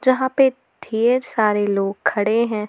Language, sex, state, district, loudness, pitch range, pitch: Hindi, female, Jharkhand, Garhwa, -19 LUFS, 205-255 Hz, 225 Hz